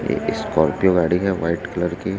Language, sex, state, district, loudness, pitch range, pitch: Hindi, male, Chhattisgarh, Raipur, -20 LUFS, 85-95 Hz, 90 Hz